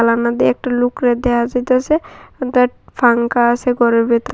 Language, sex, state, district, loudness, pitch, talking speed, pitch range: Bengali, female, Tripura, West Tripura, -15 LUFS, 245 Hz, 150 wpm, 235-250 Hz